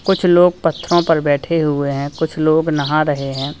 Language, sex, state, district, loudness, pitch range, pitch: Hindi, male, Uttar Pradesh, Lalitpur, -16 LUFS, 145-170 Hz, 155 Hz